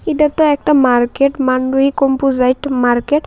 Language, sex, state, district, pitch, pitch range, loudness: Bengali, female, Tripura, West Tripura, 275 Hz, 255-290 Hz, -14 LUFS